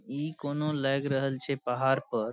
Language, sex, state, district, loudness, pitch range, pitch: Maithili, male, Bihar, Saharsa, -30 LUFS, 135-145 Hz, 140 Hz